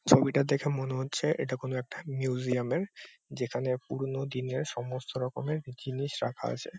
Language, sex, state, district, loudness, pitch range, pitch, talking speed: Bengali, male, West Bengal, Kolkata, -32 LUFS, 125-140 Hz, 130 Hz, 150 wpm